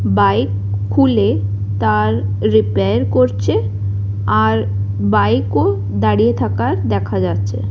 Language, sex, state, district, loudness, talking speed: Bengali, female, Odisha, Khordha, -16 LUFS, 95 wpm